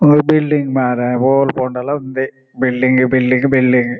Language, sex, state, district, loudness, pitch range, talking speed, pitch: Tulu, male, Karnataka, Dakshina Kannada, -14 LUFS, 125-140 Hz, 150 wpm, 130 Hz